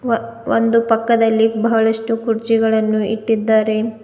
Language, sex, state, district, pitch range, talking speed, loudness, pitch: Kannada, female, Karnataka, Bidar, 220-230 Hz, 75 wpm, -16 LUFS, 225 Hz